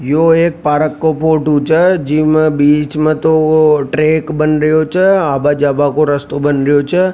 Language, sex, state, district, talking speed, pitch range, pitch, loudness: Rajasthani, male, Rajasthan, Nagaur, 185 wpm, 145-160 Hz, 155 Hz, -12 LUFS